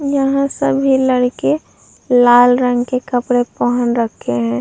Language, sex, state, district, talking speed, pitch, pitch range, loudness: Hindi, female, Uttar Pradesh, Muzaffarnagar, 130 wpm, 250 Hz, 245-270 Hz, -15 LUFS